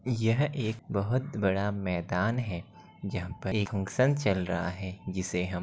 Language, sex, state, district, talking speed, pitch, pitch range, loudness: Hindi, male, Uttar Pradesh, Etah, 170 wpm, 100 Hz, 90-115 Hz, -30 LUFS